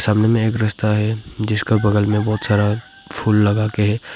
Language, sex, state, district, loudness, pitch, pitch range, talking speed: Hindi, male, Arunachal Pradesh, Papum Pare, -18 LUFS, 105 Hz, 105-110 Hz, 185 wpm